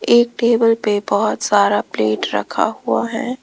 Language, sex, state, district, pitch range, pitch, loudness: Hindi, female, Rajasthan, Jaipur, 205-235 Hz, 225 Hz, -17 LUFS